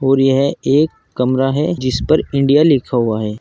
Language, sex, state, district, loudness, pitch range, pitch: Hindi, male, Uttar Pradesh, Saharanpur, -15 LUFS, 130-145 Hz, 135 Hz